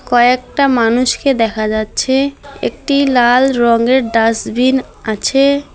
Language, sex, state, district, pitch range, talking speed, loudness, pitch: Bengali, female, West Bengal, Alipurduar, 230-270 Hz, 95 wpm, -13 LUFS, 250 Hz